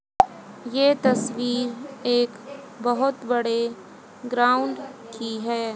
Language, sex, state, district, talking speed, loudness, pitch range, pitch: Hindi, female, Haryana, Jhajjar, 85 wpm, -24 LUFS, 235-265 Hz, 245 Hz